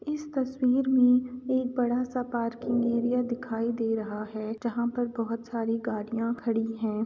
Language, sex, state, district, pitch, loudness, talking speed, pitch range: Hindi, female, Uttar Pradesh, Etah, 235 Hz, -28 LUFS, 160 wpm, 230-250 Hz